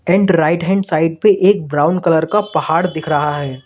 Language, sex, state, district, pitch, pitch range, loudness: Hindi, male, Uttar Pradesh, Lalitpur, 165 Hz, 155-185 Hz, -15 LUFS